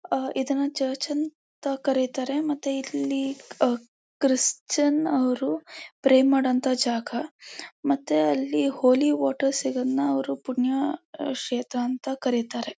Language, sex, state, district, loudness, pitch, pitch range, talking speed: Kannada, female, Karnataka, Mysore, -25 LUFS, 265 Hz, 250-280 Hz, 115 wpm